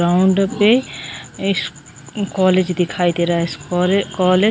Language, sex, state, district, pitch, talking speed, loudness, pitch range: Hindi, female, Jharkhand, Sahebganj, 185 Hz, 145 wpm, -17 LUFS, 170-195 Hz